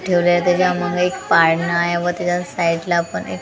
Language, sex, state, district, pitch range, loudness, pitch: Marathi, female, Maharashtra, Gondia, 170-180 Hz, -18 LUFS, 175 Hz